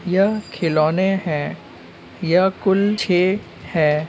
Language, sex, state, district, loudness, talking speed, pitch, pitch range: Hindi, male, West Bengal, Purulia, -19 LUFS, 105 wpm, 180 Hz, 150-195 Hz